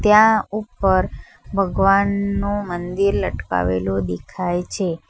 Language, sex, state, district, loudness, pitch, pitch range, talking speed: Gujarati, female, Gujarat, Valsad, -20 LUFS, 190 Hz, 175-200 Hz, 80 wpm